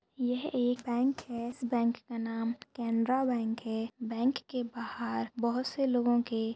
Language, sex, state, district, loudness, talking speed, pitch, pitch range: Hindi, female, Maharashtra, Sindhudurg, -33 LUFS, 165 wpm, 240 Hz, 230-250 Hz